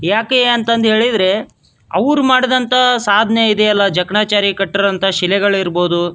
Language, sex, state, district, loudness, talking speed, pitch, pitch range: Kannada, male, Karnataka, Dharwad, -13 LUFS, 115 wpm, 210 Hz, 195-240 Hz